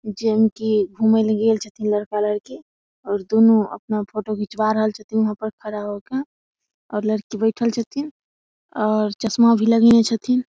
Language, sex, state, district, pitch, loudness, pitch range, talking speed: Maithili, female, Bihar, Samastipur, 215 Hz, -20 LUFS, 210-225 Hz, 165 wpm